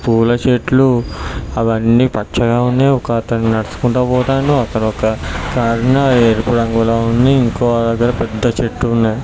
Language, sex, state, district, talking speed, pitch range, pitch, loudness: Telugu, male, Telangana, Karimnagar, 115 wpm, 115-125 Hz, 115 Hz, -14 LUFS